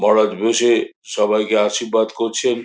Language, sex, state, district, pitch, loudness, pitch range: Bengali, male, West Bengal, Jhargram, 110 Hz, -18 LUFS, 105-115 Hz